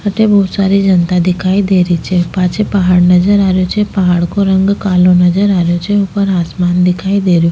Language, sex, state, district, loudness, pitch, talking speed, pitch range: Rajasthani, female, Rajasthan, Nagaur, -11 LUFS, 185 Hz, 215 wpm, 180-200 Hz